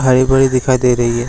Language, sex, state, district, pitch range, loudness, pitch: Hindi, male, Bihar, Gaya, 125-130 Hz, -13 LUFS, 130 Hz